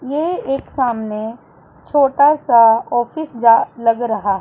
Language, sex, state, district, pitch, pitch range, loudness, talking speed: Hindi, female, Punjab, Pathankot, 240 Hz, 230-280 Hz, -16 LUFS, 120 wpm